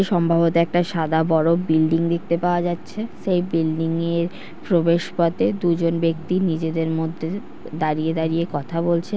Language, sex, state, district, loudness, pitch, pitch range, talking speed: Bengali, female, West Bengal, North 24 Parganas, -21 LUFS, 170 Hz, 160-175 Hz, 135 wpm